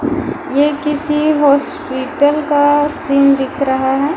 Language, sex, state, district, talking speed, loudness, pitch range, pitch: Hindi, female, Bihar, Patna, 115 wpm, -14 LUFS, 275-300 Hz, 290 Hz